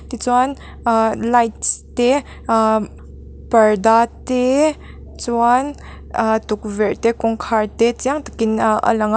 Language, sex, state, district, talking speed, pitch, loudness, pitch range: Mizo, female, Mizoram, Aizawl, 125 wpm, 230 Hz, -17 LUFS, 220-245 Hz